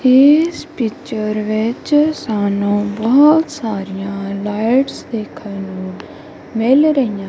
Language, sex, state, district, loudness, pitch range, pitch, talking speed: Punjabi, female, Punjab, Kapurthala, -16 LUFS, 205-275 Hz, 220 Hz, 90 wpm